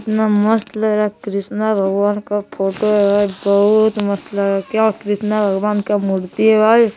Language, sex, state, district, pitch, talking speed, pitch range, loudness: Hindi, female, Bihar, Lakhisarai, 205 Hz, 190 wpm, 200-215 Hz, -16 LUFS